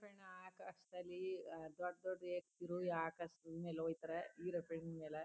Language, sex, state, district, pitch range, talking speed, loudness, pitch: Kannada, female, Karnataka, Chamarajanagar, 165-180 Hz, 115 wpm, -48 LUFS, 175 Hz